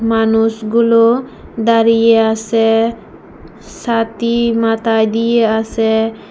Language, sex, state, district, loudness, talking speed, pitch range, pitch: Bengali, female, Tripura, West Tripura, -13 LUFS, 65 wpm, 225-230 Hz, 225 Hz